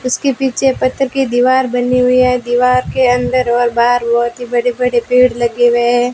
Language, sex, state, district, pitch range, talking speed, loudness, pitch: Hindi, female, Rajasthan, Bikaner, 240-255 Hz, 205 wpm, -13 LUFS, 250 Hz